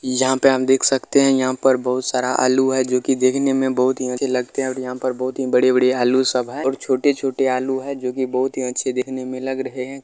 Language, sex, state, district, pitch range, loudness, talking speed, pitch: Maithili, male, Bihar, Kishanganj, 130-135 Hz, -19 LUFS, 275 wpm, 130 Hz